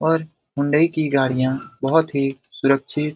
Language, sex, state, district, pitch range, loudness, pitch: Hindi, male, Bihar, Jamui, 135-160 Hz, -20 LUFS, 140 Hz